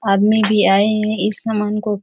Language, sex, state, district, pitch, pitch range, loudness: Hindi, female, Bihar, Jahanabad, 210 Hz, 205-215 Hz, -16 LUFS